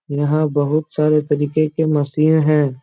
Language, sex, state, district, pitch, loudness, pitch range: Hindi, male, Bihar, Supaul, 150 Hz, -17 LUFS, 145-155 Hz